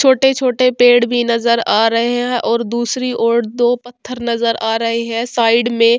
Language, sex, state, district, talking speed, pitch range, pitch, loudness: Hindi, female, Bihar, Vaishali, 190 wpm, 230-245 Hz, 235 Hz, -15 LUFS